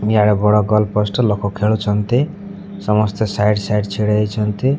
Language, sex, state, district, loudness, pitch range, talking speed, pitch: Odia, male, Odisha, Malkangiri, -17 LUFS, 105-110 Hz, 140 wpm, 105 Hz